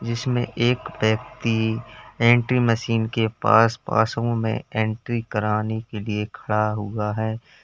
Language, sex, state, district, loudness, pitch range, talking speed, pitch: Hindi, male, Uttar Pradesh, Lalitpur, -23 LUFS, 110-115 Hz, 125 wpm, 110 Hz